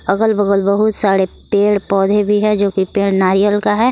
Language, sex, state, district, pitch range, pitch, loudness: Hindi, female, Jharkhand, Garhwa, 195-210 Hz, 205 Hz, -14 LUFS